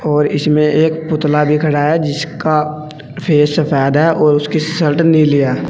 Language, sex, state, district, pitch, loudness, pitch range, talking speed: Hindi, male, Uttar Pradesh, Saharanpur, 150 Hz, -13 LUFS, 150-160 Hz, 170 wpm